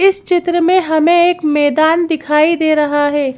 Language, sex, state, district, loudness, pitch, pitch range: Hindi, female, Madhya Pradesh, Bhopal, -13 LUFS, 315 Hz, 300-345 Hz